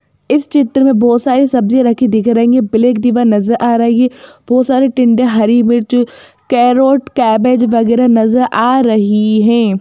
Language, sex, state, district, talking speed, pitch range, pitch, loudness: Hindi, female, Madhya Pradesh, Bhopal, 170 wpm, 230-255 Hz, 240 Hz, -11 LUFS